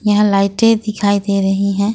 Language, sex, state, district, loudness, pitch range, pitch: Hindi, female, Jharkhand, Ranchi, -15 LUFS, 200-210 Hz, 200 Hz